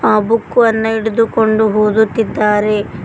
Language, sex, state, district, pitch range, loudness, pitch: Kannada, female, Karnataka, Koppal, 210-225 Hz, -13 LUFS, 220 Hz